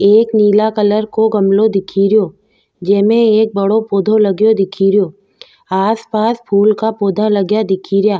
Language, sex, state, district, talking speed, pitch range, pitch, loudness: Rajasthani, female, Rajasthan, Nagaur, 155 wpm, 195-220 Hz, 210 Hz, -13 LUFS